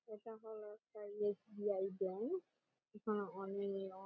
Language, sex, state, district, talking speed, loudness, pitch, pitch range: Bengali, female, West Bengal, Malda, 135 wpm, -44 LUFS, 205 Hz, 195-215 Hz